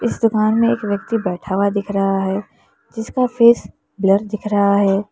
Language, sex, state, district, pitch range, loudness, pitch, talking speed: Hindi, female, Uttar Pradesh, Lalitpur, 195-225 Hz, -17 LUFS, 205 Hz, 190 wpm